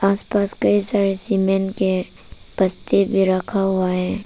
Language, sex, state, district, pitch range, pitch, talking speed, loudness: Hindi, female, Arunachal Pradesh, Papum Pare, 190-200 Hz, 195 Hz, 140 wpm, -18 LUFS